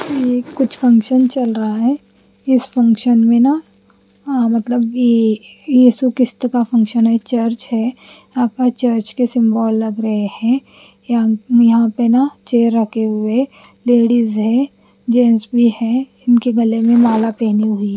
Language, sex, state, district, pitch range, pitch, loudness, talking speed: Hindi, female, Chandigarh, Chandigarh, 225-250 Hz, 235 Hz, -15 LUFS, 150 wpm